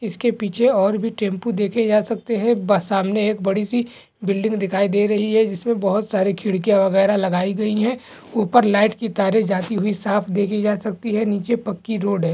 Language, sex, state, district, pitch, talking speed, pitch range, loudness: Hindi, male, Chhattisgarh, Sukma, 210 Hz, 200 wpm, 200-220 Hz, -19 LUFS